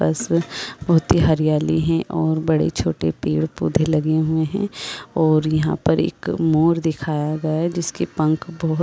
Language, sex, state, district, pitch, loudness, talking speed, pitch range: Hindi, female, Chhattisgarh, Rajnandgaon, 160 Hz, -20 LUFS, 155 wpm, 155-165 Hz